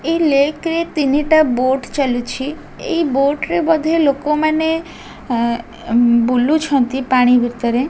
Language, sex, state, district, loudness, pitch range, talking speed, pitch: Odia, female, Odisha, Khordha, -16 LUFS, 245-315 Hz, 105 wpm, 275 Hz